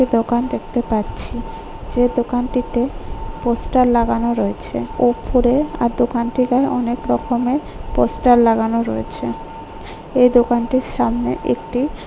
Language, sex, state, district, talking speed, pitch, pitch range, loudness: Bengali, female, West Bengal, Kolkata, 105 wpm, 240 Hz, 230-250 Hz, -18 LUFS